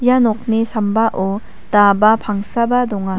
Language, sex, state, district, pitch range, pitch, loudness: Garo, female, Meghalaya, West Garo Hills, 205-230 Hz, 215 Hz, -16 LUFS